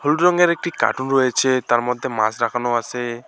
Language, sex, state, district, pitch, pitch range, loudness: Bengali, male, West Bengal, Alipurduar, 125 Hz, 120-135 Hz, -19 LUFS